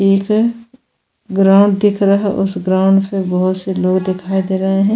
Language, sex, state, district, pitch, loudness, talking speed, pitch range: Hindi, female, Goa, North and South Goa, 195 Hz, -14 LUFS, 180 wpm, 190-200 Hz